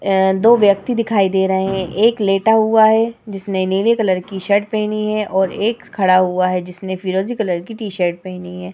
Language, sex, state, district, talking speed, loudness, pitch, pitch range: Hindi, female, Uttar Pradesh, Muzaffarnagar, 215 wpm, -16 LUFS, 195 Hz, 185-215 Hz